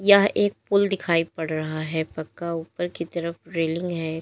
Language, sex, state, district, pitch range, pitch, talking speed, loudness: Hindi, female, Uttar Pradesh, Lalitpur, 160-180 Hz, 170 Hz, 185 wpm, -25 LUFS